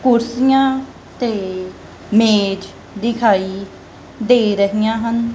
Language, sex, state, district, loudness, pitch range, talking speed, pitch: Punjabi, female, Punjab, Kapurthala, -17 LUFS, 200-240 Hz, 80 wpm, 225 Hz